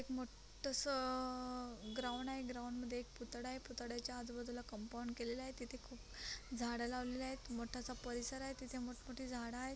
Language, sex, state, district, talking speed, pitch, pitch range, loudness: Marathi, female, Maharashtra, Chandrapur, 165 wpm, 250 Hz, 240-255 Hz, -46 LUFS